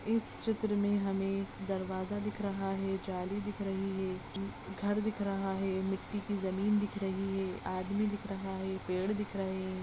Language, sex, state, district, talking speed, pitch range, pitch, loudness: Hindi, female, Maharashtra, Aurangabad, 185 wpm, 190-205 Hz, 195 Hz, -36 LUFS